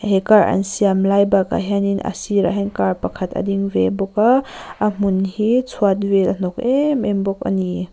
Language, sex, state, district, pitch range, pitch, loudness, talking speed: Mizo, female, Mizoram, Aizawl, 195-210 Hz, 200 Hz, -18 LUFS, 220 wpm